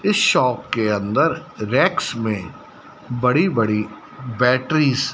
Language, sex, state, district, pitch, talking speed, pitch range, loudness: Hindi, male, Madhya Pradesh, Dhar, 125 Hz, 115 wpm, 110-140 Hz, -19 LUFS